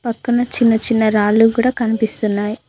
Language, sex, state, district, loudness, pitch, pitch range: Telugu, female, Telangana, Mahabubabad, -15 LUFS, 225 Hz, 215-240 Hz